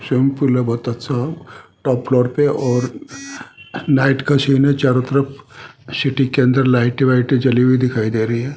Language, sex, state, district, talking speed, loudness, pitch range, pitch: Hindi, male, Rajasthan, Jaipur, 175 wpm, -17 LUFS, 125-135 Hz, 130 Hz